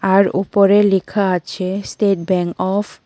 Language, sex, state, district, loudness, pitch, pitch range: Bengali, female, Tripura, West Tripura, -17 LUFS, 195 Hz, 185-200 Hz